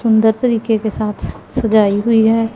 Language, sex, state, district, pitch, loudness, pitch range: Hindi, female, Punjab, Pathankot, 220 Hz, -15 LUFS, 215-230 Hz